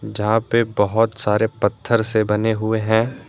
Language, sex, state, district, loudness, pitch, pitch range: Hindi, male, Jharkhand, Deoghar, -19 LUFS, 110 Hz, 105-115 Hz